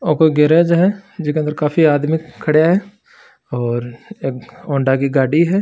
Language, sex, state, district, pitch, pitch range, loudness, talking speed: Marwari, male, Rajasthan, Nagaur, 155 Hz, 140-170 Hz, -16 LUFS, 170 wpm